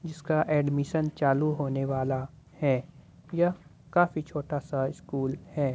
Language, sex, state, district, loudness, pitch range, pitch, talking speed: Hindi, male, Bihar, Muzaffarpur, -29 LUFS, 135-155 Hz, 145 Hz, 125 wpm